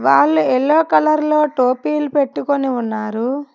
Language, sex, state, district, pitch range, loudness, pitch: Telugu, female, Telangana, Hyderabad, 230-300 Hz, -16 LUFS, 270 Hz